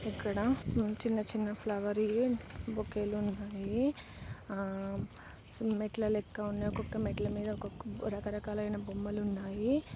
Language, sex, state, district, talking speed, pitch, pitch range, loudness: Telugu, female, Andhra Pradesh, Srikakulam, 110 wpm, 210 Hz, 205-215 Hz, -36 LUFS